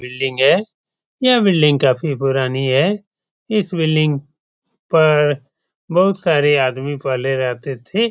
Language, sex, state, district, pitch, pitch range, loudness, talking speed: Hindi, male, Bihar, Supaul, 150 Hz, 135-190 Hz, -17 LUFS, 120 wpm